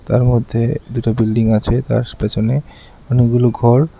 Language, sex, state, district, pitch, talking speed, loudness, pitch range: Bengali, male, Tripura, West Tripura, 120 Hz, 135 wpm, -16 LUFS, 115-125 Hz